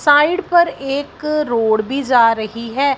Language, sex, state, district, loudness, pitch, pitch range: Hindi, female, Punjab, Fazilka, -16 LUFS, 275 Hz, 230-300 Hz